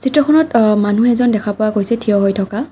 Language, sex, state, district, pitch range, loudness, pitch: Assamese, female, Assam, Kamrup Metropolitan, 205-245 Hz, -14 LUFS, 220 Hz